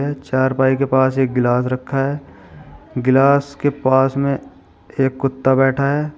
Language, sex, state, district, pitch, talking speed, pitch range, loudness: Hindi, male, Uttar Pradesh, Shamli, 135 Hz, 145 wpm, 130-140 Hz, -17 LUFS